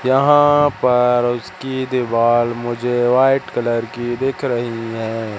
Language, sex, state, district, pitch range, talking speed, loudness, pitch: Hindi, male, Madhya Pradesh, Katni, 120-135 Hz, 120 wpm, -17 LUFS, 120 Hz